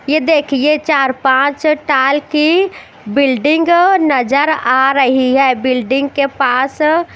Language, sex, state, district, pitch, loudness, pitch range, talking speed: Hindi, female, Chandigarh, Chandigarh, 280 Hz, -13 LUFS, 265-305 Hz, 140 wpm